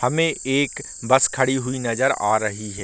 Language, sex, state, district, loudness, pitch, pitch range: Hindi, male, Bihar, Darbhanga, -21 LUFS, 130 Hz, 110-135 Hz